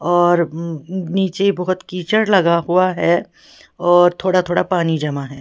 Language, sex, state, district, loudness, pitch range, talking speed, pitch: Hindi, female, Uttar Pradesh, Lalitpur, -17 LUFS, 170-185 Hz, 145 wpm, 175 Hz